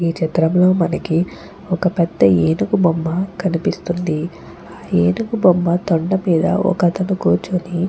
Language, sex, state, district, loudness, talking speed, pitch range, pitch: Telugu, female, Andhra Pradesh, Chittoor, -17 LUFS, 115 wpm, 165-185 Hz, 175 Hz